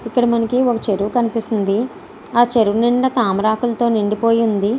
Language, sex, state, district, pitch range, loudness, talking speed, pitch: Telugu, female, Andhra Pradesh, Srikakulam, 215-240 Hz, -17 LUFS, 125 wpm, 230 Hz